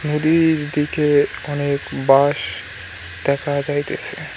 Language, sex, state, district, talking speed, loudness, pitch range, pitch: Bengali, male, West Bengal, Cooch Behar, 80 wpm, -19 LUFS, 135-150 Hz, 145 Hz